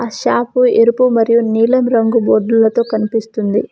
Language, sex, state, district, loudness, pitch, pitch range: Telugu, female, Telangana, Mahabubabad, -13 LUFS, 230 Hz, 225-235 Hz